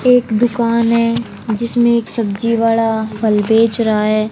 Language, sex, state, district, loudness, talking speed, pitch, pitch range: Hindi, female, Haryana, Charkhi Dadri, -15 LUFS, 155 wpm, 230 Hz, 220-235 Hz